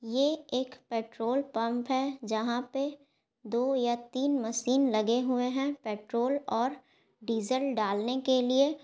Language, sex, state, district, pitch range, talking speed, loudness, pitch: Hindi, female, Bihar, Gaya, 230-270 Hz, 135 wpm, -30 LUFS, 255 Hz